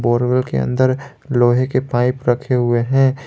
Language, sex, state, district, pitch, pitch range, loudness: Hindi, male, Jharkhand, Garhwa, 125 Hz, 120-130 Hz, -17 LUFS